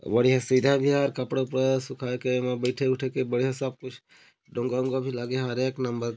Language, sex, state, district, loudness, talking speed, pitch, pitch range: Chhattisgarhi, male, Chhattisgarh, Korba, -26 LUFS, 235 wpm, 130 Hz, 125-130 Hz